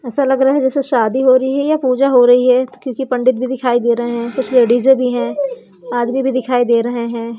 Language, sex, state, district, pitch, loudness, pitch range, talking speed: Hindi, female, Madhya Pradesh, Umaria, 255 Hz, -14 LUFS, 240-265 Hz, 250 wpm